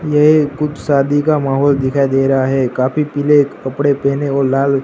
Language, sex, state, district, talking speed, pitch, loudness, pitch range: Hindi, male, Gujarat, Gandhinagar, 185 wpm, 140 Hz, -14 LUFS, 135-145 Hz